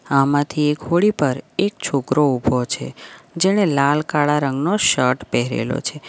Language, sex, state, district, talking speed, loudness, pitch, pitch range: Gujarati, female, Gujarat, Valsad, 150 wpm, -19 LUFS, 145 Hz, 130-155 Hz